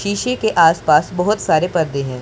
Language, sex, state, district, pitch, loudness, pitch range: Hindi, male, Punjab, Pathankot, 175 Hz, -16 LUFS, 155-200 Hz